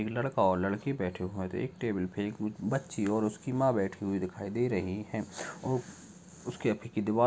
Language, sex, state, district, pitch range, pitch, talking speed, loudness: Hindi, male, Uttar Pradesh, Budaun, 95-125 Hz, 105 Hz, 220 wpm, -33 LUFS